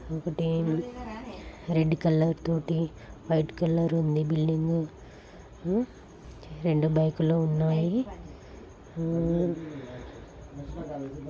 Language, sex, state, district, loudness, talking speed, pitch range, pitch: Telugu, female, Telangana, Karimnagar, -28 LUFS, 80 wpm, 155-165 Hz, 165 Hz